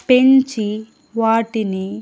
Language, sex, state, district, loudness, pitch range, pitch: Telugu, female, Andhra Pradesh, Annamaya, -17 LUFS, 215-255 Hz, 225 Hz